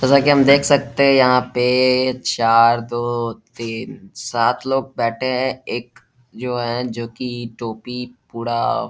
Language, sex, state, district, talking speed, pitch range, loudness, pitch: Hindi, male, Bihar, Jahanabad, 155 wpm, 115-130 Hz, -18 LUFS, 120 Hz